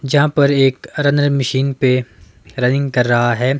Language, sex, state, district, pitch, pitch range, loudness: Hindi, male, Himachal Pradesh, Shimla, 135 Hz, 125-140 Hz, -15 LUFS